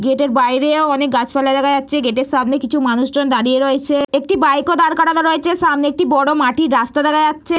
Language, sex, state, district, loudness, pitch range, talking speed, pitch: Bengali, female, West Bengal, Paschim Medinipur, -15 LUFS, 265-305 Hz, 215 wpm, 285 Hz